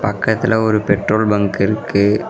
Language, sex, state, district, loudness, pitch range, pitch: Tamil, male, Tamil Nadu, Namakkal, -16 LUFS, 100-110 Hz, 105 Hz